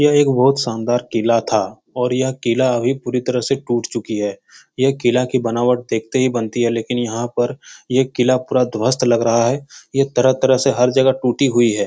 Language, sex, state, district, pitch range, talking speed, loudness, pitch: Hindi, male, Uttar Pradesh, Etah, 115-130 Hz, 215 wpm, -17 LUFS, 125 Hz